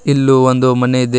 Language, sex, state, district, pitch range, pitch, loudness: Kannada, male, Karnataka, Bidar, 125-135 Hz, 130 Hz, -12 LUFS